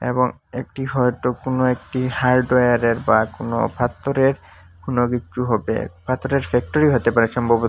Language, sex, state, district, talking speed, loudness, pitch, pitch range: Bengali, male, Assam, Hailakandi, 140 wpm, -20 LUFS, 125 Hz, 115-130 Hz